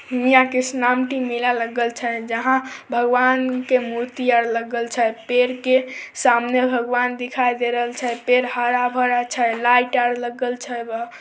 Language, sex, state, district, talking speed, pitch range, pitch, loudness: Maithili, female, Bihar, Samastipur, 130 wpm, 240-255 Hz, 245 Hz, -20 LUFS